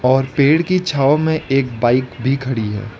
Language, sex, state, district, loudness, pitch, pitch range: Hindi, male, Arunachal Pradesh, Lower Dibang Valley, -17 LUFS, 135 Hz, 125-145 Hz